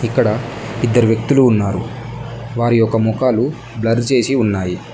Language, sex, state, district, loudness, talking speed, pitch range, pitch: Telugu, male, Telangana, Mahabubabad, -16 LUFS, 120 wpm, 110-125 Hz, 115 Hz